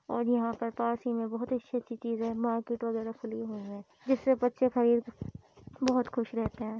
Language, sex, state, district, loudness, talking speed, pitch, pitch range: Hindi, female, Uttar Pradesh, Muzaffarnagar, -31 LUFS, 200 wpm, 235 Hz, 230-245 Hz